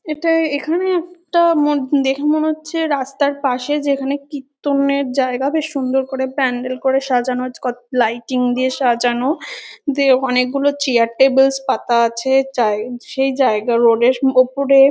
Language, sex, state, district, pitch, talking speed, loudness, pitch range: Bengali, female, West Bengal, North 24 Parganas, 270 Hz, 135 wpm, -17 LUFS, 255-285 Hz